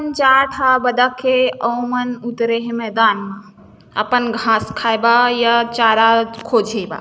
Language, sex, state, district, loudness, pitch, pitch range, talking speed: Hindi, female, Chhattisgarh, Bilaspur, -16 LUFS, 235 Hz, 225-245 Hz, 145 wpm